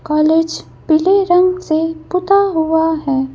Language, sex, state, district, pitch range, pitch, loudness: Hindi, female, Madhya Pradesh, Bhopal, 315-365 Hz, 320 Hz, -14 LUFS